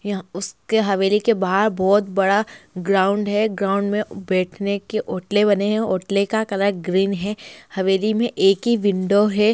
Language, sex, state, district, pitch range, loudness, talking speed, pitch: Hindi, female, Bihar, Bhagalpur, 195-210 Hz, -20 LUFS, 170 wpm, 200 Hz